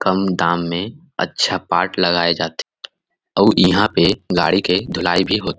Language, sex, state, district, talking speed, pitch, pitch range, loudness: Chhattisgarhi, male, Chhattisgarh, Rajnandgaon, 195 wpm, 90 Hz, 85-95 Hz, -17 LUFS